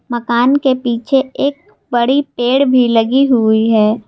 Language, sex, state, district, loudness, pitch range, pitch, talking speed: Hindi, female, Jharkhand, Garhwa, -13 LUFS, 235-270 Hz, 245 Hz, 145 wpm